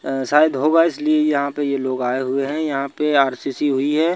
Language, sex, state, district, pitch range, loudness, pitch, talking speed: Hindi, male, Madhya Pradesh, Bhopal, 135-150 Hz, -19 LUFS, 140 Hz, 230 wpm